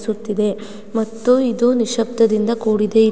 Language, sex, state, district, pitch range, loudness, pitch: Kannada, female, Karnataka, Mysore, 215-235 Hz, -18 LUFS, 225 Hz